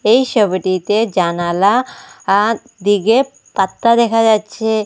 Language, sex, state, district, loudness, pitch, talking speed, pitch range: Bengali, female, Assam, Hailakandi, -15 LUFS, 215 Hz, 100 wpm, 195-235 Hz